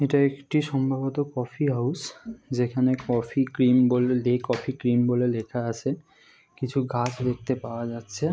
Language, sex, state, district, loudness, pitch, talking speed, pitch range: Bengali, male, West Bengal, North 24 Parganas, -25 LUFS, 125 Hz, 135 wpm, 120-135 Hz